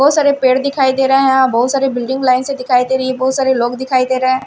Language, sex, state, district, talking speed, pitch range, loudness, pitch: Hindi, female, Punjab, Kapurthala, 310 wpm, 255-270 Hz, -14 LUFS, 260 Hz